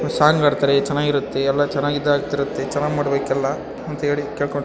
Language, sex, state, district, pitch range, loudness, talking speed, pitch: Kannada, female, Karnataka, Bellary, 140-145 Hz, -20 LUFS, 170 wpm, 145 Hz